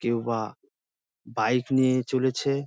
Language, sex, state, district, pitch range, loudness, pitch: Bengali, male, West Bengal, Dakshin Dinajpur, 110-130 Hz, -26 LUFS, 125 Hz